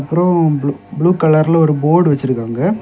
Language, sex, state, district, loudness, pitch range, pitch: Tamil, male, Tamil Nadu, Kanyakumari, -14 LUFS, 140-170 Hz, 155 Hz